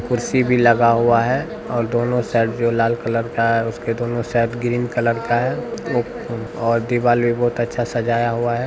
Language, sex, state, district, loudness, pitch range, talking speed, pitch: Hindi, male, Bihar, Begusarai, -19 LUFS, 115-120 Hz, 195 wpm, 120 Hz